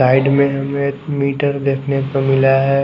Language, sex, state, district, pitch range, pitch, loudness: Hindi, male, Maharashtra, Gondia, 135-140 Hz, 140 Hz, -16 LUFS